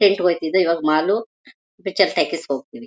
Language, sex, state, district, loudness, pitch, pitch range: Kannada, female, Karnataka, Mysore, -20 LUFS, 185 Hz, 165-200 Hz